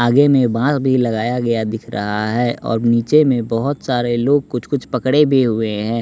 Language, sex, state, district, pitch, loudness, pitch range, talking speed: Hindi, male, Bihar, West Champaran, 120 Hz, -17 LUFS, 115-135 Hz, 210 wpm